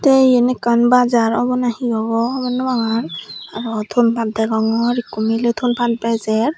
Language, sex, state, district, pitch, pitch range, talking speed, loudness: Chakma, female, Tripura, Dhalai, 235 Hz, 225-245 Hz, 180 wpm, -17 LUFS